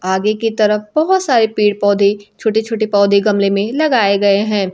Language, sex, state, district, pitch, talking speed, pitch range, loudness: Hindi, female, Bihar, Kaimur, 210 Hz, 190 wpm, 200-220 Hz, -14 LUFS